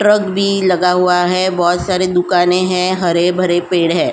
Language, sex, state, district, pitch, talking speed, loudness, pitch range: Hindi, female, Uttar Pradesh, Jyotiba Phule Nagar, 180 Hz, 205 wpm, -14 LUFS, 175-185 Hz